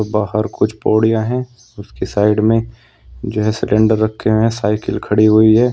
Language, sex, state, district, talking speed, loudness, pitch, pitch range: Hindi, male, Uttar Pradesh, Saharanpur, 155 wpm, -15 LUFS, 110 Hz, 105-115 Hz